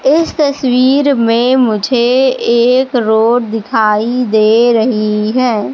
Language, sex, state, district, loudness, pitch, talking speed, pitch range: Hindi, female, Madhya Pradesh, Katni, -11 LUFS, 240 Hz, 105 wpm, 225-255 Hz